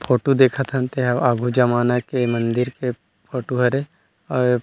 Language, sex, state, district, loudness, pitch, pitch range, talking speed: Chhattisgarhi, male, Chhattisgarh, Rajnandgaon, -20 LUFS, 125 Hz, 120-130 Hz, 155 wpm